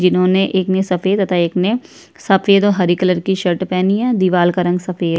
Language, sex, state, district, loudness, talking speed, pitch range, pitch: Hindi, female, Chhattisgarh, Sukma, -15 LUFS, 230 wpm, 180-195 Hz, 185 Hz